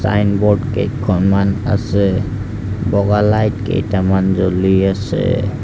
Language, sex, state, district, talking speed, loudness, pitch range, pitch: Assamese, male, Assam, Sonitpur, 85 wpm, -16 LUFS, 95-105 Hz, 100 Hz